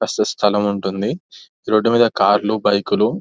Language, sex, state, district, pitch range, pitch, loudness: Telugu, male, Telangana, Nalgonda, 100-110 Hz, 105 Hz, -17 LUFS